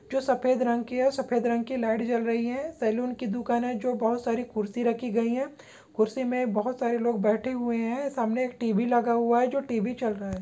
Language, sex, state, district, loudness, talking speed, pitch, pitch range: Hindi, male, Maharashtra, Pune, -27 LUFS, 235 wpm, 240 Hz, 230-250 Hz